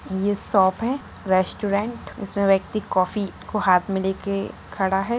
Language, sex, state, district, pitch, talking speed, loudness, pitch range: Hindi, female, Bihar, Sitamarhi, 195 Hz, 150 wpm, -23 LUFS, 190-210 Hz